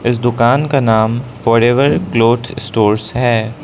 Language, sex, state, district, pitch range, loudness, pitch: Hindi, male, Arunachal Pradesh, Lower Dibang Valley, 115-125 Hz, -13 LUFS, 120 Hz